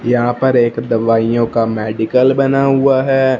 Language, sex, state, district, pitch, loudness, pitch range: Hindi, male, Punjab, Fazilka, 120 Hz, -14 LUFS, 115-135 Hz